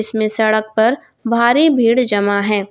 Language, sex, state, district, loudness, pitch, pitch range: Hindi, female, Jharkhand, Garhwa, -15 LUFS, 220 Hz, 215-235 Hz